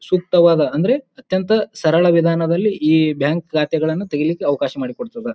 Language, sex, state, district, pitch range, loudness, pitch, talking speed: Kannada, male, Karnataka, Bijapur, 160-210 Hz, -17 LUFS, 170 Hz, 125 wpm